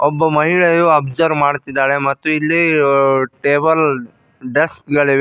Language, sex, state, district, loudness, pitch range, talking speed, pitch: Kannada, male, Karnataka, Koppal, -14 LUFS, 140-160 Hz, 105 wpm, 145 Hz